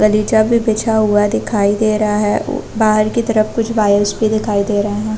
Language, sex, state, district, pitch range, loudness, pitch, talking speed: Hindi, female, Chhattisgarh, Raigarh, 210-220 Hz, -15 LUFS, 215 Hz, 220 wpm